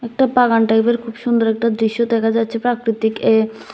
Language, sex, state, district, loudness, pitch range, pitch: Bengali, female, Tripura, West Tripura, -17 LUFS, 225-235 Hz, 230 Hz